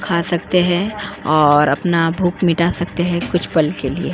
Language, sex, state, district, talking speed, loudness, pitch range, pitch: Hindi, female, Goa, North and South Goa, 190 wpm, -17 LUFS, 165-180 Hz, 175 Hz